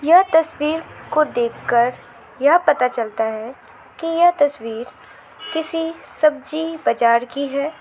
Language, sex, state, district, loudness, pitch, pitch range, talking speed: Hindi, female, West Bengal, Alipurduar, -19 LUFS, 290 Hz, 240-320 Hz, 125 wpm